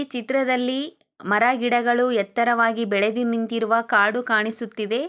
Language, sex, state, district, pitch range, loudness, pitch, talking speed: Kannada, female, Karnataka, Chamarajanagar, 220-245 Hz, -21 LUFS, 235 Hz, 105 wpm